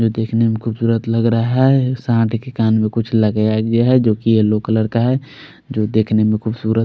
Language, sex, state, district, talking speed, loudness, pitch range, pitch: Hindi, male, Odisha, Khordha, 230 wpm, -16 LUFS, 110-115 Hz, 115 Hz